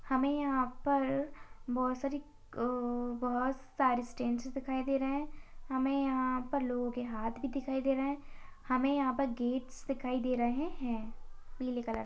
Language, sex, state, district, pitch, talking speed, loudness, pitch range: Hindi, female, West Bengal, Dakshin Dinajpur, 260 Hz, 160 wpm, -35 LUFS, 245-275 Hz